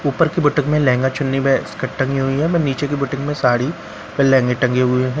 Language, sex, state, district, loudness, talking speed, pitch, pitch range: Hindi, male, Bihar, Katihar, -18 LUFS, 240 wpm, 135 Hz, 130-150 Hz